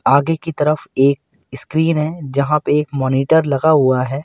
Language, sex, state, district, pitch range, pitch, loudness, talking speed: Hindi, male, Uttar Pradesh, Lucknow, 135-160 Hz, 150 Hz, -16 LUFS, 185 wpm